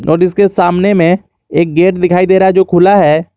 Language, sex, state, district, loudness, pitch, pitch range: Hindi, male, Jharkhand, Garhwa, -10 LUFS, 180 Hz, 170-190 Hz